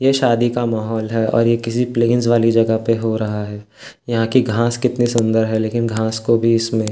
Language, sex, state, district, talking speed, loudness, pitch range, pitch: Hindi, male, Uttarakhand, Tehri Garhwal, 235 wpm, -17 LUFS, 110-120 Hz, 115 Hz